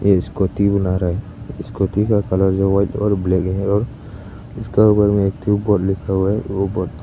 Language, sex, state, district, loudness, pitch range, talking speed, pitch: Hindi, male, Arunachal Pradesh, Papum Pare, -18 LUFS, 95-105 Hz, 180 wpm, 100 Hz